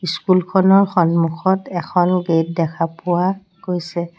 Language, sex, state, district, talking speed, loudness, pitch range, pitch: Assamese, female, Assam, Sonitpur, 115 wpm, -18 LUFS, 170-185 Hz, 180 Hz